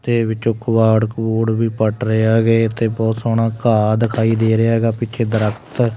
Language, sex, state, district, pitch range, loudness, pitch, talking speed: Punjabi, male, Punjab, Kapurthala, 110-115 Hz, -17 LUFS, 115 Hz, 180 wpm